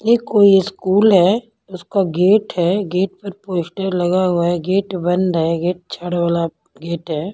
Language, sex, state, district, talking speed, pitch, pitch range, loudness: Hindi, female, Punjab, Pathankot, 170 wpm, 185 Hz, 175-195 Hz, -17 LUFS